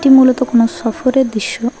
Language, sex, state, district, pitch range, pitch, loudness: Bengali, female, West Bengal, Alipurduar, 230-260 Hz, 255 Hz, -13 LUFS